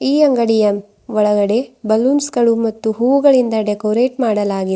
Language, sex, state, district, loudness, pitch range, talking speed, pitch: Kannada, female, Karnataka, Bidar, -15 LUFS, 210-255 Hz, 115 wpm, 225 Hz